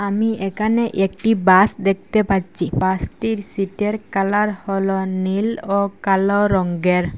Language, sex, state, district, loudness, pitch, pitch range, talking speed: Bengali, female, Assam, Hailakandi, -19 LUFS, 195 Hz, 190-210 Hz, 115 wpm